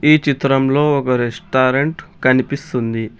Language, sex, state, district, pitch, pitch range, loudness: Telugu, male, Telangana, Hyderabad, 135 Hz, 125-145 Hz, -16 LUFS